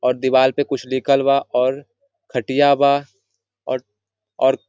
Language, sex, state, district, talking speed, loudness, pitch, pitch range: Hindi, male, Jharkhand, Sahebganj, 130 wpm, -18 LUFS, 130 Hz, 120-140 Hz